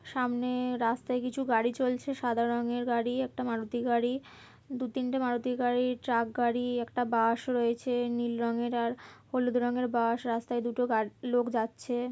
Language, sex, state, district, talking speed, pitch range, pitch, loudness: Bengali, female, West Bengal, Kolkata, 165 wpm, 235-250 Hz, 245 Hz, -31 LUFS